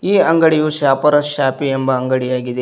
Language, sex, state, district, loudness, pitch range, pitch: Kannada, male, Karnataka, Koppal, -15 LUFS, 130-155 Hz, 140 Hz